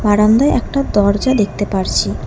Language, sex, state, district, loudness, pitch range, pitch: Bengali, female, West Bengal, Alipurduar, -15 LUFS, 205-260 Hz, 210 Hz